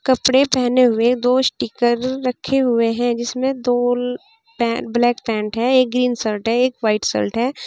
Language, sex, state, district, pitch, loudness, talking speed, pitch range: Hindi, female, Uttar Pradesh, Saharanpur, 245 Hz, -18 LUFS, 180 wpm, 235-255 Hz